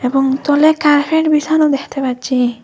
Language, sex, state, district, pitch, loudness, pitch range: Bengali, female, Assam, Hailakandi, 285 Hz, -14 LUFS, 255-305 Hz